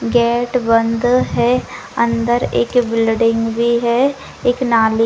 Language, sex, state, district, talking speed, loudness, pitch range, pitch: Hindi, female, Rajasthan, Nagaur, 130 wpm, -16 LUFS, 230-245 Hz, 235 Hz